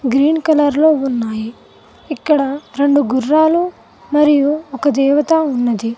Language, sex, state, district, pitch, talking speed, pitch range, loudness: Telugu, female, Telangana, Mahabubabad, 285 Hz, 110 wpm, 260-305 Hz, -15 LUFS